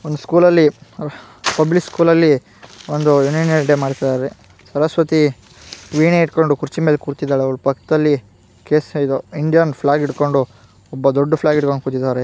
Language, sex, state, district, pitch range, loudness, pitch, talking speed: Kannada, female, Karnataka, Gulbarga, 135-155 Hz, -16 LUFS, 145 Hz, 140 wpm